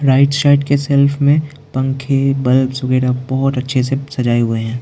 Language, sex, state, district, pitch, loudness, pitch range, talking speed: Hindi, male, Arunachal Pradesh, Lower Dibang Valley, 135 Hz, -15 LUFS, 130-140 Hz, 175 wpm